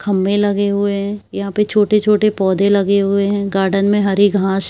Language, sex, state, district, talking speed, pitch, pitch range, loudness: Hindi, female, Bihar, Kishanganj, 205 wpm, 200 Hz, 195-205 Hz, -15 LUFS